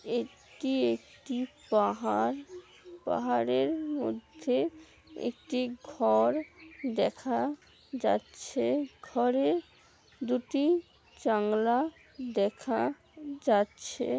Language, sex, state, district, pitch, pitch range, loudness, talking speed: Bengali, female, West Bengal, Malda, 255 Hz, 220-305 Hz, -31 LUFS, 60 wpm